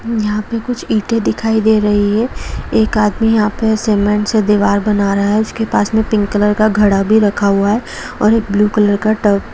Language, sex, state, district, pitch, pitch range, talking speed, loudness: Hindi, female, Jharkhand, Jamtara, 210 Hz, 205-220 Hz, 215 wpm, -14 LUFS